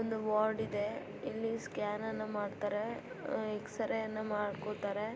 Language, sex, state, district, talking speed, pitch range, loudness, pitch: Kannada, female, Karnataka, Bijapur, 115 wpm, 210-220 Hz, -37 LUFS, 215 Hz